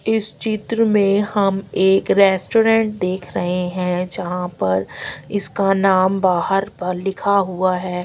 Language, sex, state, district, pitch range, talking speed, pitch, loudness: Hindi, female, Haryana, Rohtak, 180-200 Hz, 135 wpm, 190 Hz, -18 LUFS